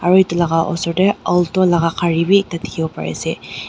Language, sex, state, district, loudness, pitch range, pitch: Nagamese, female, Nagaland, Dimapur, -17 LUFS, 170-185 Hz, 175 Hz